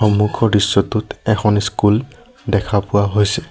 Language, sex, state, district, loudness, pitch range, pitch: Assamese, male, Assam, Sonitpur, -16 LUFS, 100-110 Hz, 105 Hz